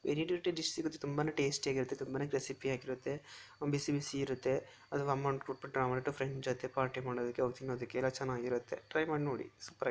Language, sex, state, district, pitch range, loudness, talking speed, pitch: Kannada, male, Karnataka, Dharwad, 130-145 Hz, -38 LUFS, 165 wpm, 135 Hz